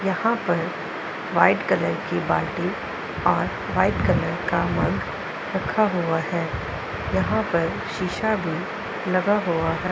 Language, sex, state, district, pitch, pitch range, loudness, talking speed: Hindi, female, Punjab, Pathankot, 185 Hz, 165-205 Hz, -24 LUFS, 125 wpm